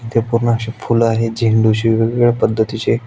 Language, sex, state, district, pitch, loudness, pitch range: Marathi, male, Maharashtra, Aurangabad, 115 Hz, -15 LUFS, 110-115 Hz